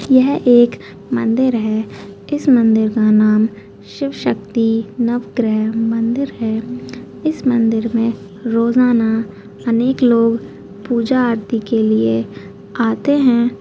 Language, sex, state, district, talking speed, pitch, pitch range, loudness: Hindi, female, Chhattisgarh, Kabirdham, 105 wpm, 230 Hz, 220-245 Hz, -16 LUFS